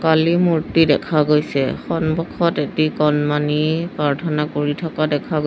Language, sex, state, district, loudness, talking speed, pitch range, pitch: Assamese, female, Assam, Sonitpur, -18 LUFS, 130 wpm, 150-165 Hz, 155 Hz